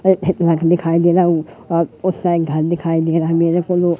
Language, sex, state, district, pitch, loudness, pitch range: Hindi, male, Madhya Pradesh, Katni, 170 Hz, -16 LUFS, 165-175 Hz